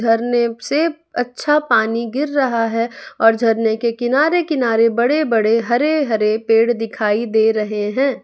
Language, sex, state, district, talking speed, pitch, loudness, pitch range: Hindi, female, Bihar, West Champaran, 155 wpm, 235 Hz, -17 LUFS, 225-270 Hz